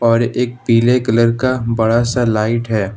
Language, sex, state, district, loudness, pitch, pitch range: Hindi, male, Jharkhand, Ranchi, -15 LUFS, 115 Hz, 115-125 Hz